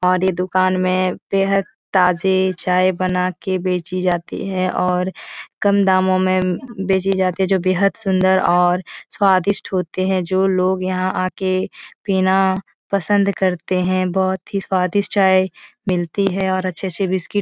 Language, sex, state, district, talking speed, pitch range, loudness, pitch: Hindi, female, Bihar, Jahanabad, 150 wpm, 185-190 Hz, -18 LUFS, 185 Hz